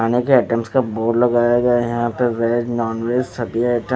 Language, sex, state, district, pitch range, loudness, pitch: Hindi, male, Maharashtra, Gondia, 115-120 Hz, -18 LUFS, 120 Hz